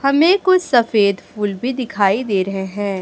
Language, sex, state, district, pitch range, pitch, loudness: Hindi, male, Chhattisgarh, Raipur, 200-260 Hz, 210 Hz, -17 LUFS